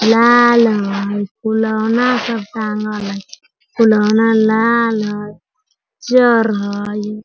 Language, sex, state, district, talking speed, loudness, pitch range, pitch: Hindi, female, Bihar, Sitamarhi, 90 wpm, -14 LUFS, 210-230 Hz, 220 Hz